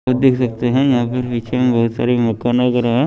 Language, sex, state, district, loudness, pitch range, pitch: Hindi, male, Chandigarh, Chandigarh, -16 LUFS, 120-125 Hz, 125 Hz